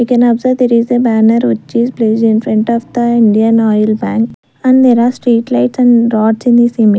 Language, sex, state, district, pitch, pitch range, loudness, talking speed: English, female, Punjab, Fazilka, 230 Hz, 220-240 Hz, -11 LUFS, 225 wpm